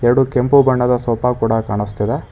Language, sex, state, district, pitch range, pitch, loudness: Kannada, male, Karnataka, Bangalore, 115-125 Hz, 120 Hz, -16 LUFS